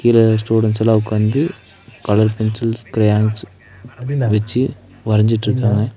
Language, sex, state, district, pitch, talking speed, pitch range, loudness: Tamil, male, Tamil Nadu, Nilgiris, 110 Hz, 90 wpm, 105-115 Hz, -16 LUFS